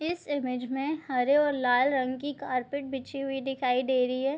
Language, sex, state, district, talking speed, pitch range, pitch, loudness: Hindi, female, Bihar, Madhepura, 205 wpm, 255-280 Hz, 270 Hz, -28 LUFS